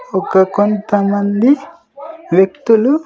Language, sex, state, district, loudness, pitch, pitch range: Telugu, male, Andhra Pradesh, Sri Satya Sai, -14 LUFS, 210 Hz, 200-285 Hz